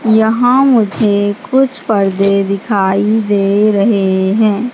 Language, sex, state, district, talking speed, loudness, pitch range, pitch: Hindi, female, Madhya Pradesh, Katni, 100 wpm, -12 LUFS, 195-225 Hz, 210 Hz